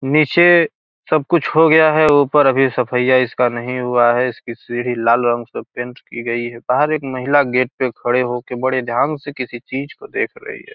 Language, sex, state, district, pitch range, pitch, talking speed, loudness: Hindi, male, Bihar, Gopalganj, 120-155 Hz, 130 Hz, 210 wpm, -16 LUFS